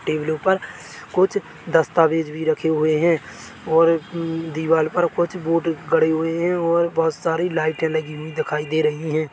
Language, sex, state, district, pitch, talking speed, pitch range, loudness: Hindi, male, Chhattisgarh, Bilaspur, 160 Hz, 165 wpm, 155-170 Hz, -21 LUFS